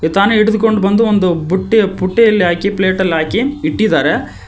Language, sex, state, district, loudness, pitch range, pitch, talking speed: Kannada, male, Karnataka, Koppal, -13 LUFS, 185-220 Hz, 200 Hz, 145 wpm